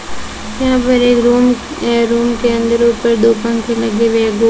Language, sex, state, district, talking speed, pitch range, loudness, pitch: Hindi, female, Rajasthan, Bikaner, 215 wpm, 230-240 Hz, -13 LUFS, 235 Hz